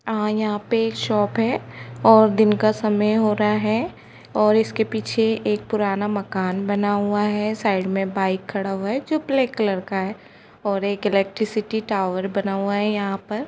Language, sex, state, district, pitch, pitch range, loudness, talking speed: Hindi, female, Jharkhand, Jamtara, 210 Hz, 195-220 Hz, -21 LUFS, 165 wpm